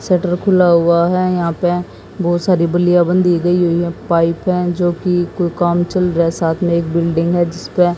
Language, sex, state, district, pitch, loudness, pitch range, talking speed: Hindi, female, Haryana, Jhajjar, 175 Hz, -15 LUFS, 170-180 Hz, 210 wpm